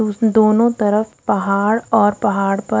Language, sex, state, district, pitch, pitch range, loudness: Hindi, female, Odisha, Khordha, 210 Hz, 200-220 Hz, -16 LUFS